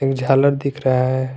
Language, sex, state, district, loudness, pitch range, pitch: Hindi, male, Jharkhand, Garhwa, -17 LUFS, 130-140 Hz, 135 Hz